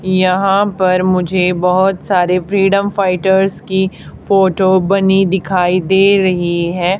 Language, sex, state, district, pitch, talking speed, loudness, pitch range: Hindi, female, Haryana, Charkhi Dadri, 190 Hz, 120 wpm, -13 LUFS, 180-195 Hz